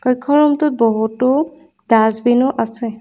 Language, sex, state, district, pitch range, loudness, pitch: Assamese, female, Assam, Kamrup Metropolitan, 225-290 Hz, -15 LUFS, 250 Hz